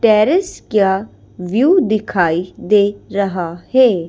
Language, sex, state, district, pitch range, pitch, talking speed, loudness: Hindi, female, Madhya Pradesh, Bhopal, 185-235 Hz, 205 Hz, 105 wpm, -16 LUFS